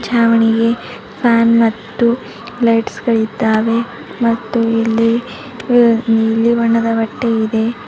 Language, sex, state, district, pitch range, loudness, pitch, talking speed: Kannada, female, Karnataka, Bidar, 225-235 Hz, -14 LUFS, 230 Hz, 90 wpm